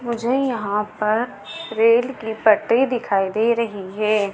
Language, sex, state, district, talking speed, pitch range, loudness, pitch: Hindi, female, Madhya Pradesh, Dhar, 140 wpm, 210-240 Hz, -20 LUFS, 225 Hz